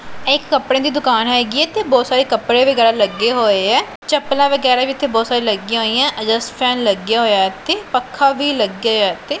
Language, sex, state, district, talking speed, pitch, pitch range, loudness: Punjabi, female, Punjab, Pathankot, 205 wpm, 245 Hz, 225-275 Hz, -15 LUFS